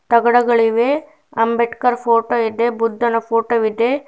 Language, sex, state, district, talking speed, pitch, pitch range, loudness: Kannada, female, Karnataka, Bidar, 105 wpm, 235 Hz, 230-240 Hz, -17 LUFS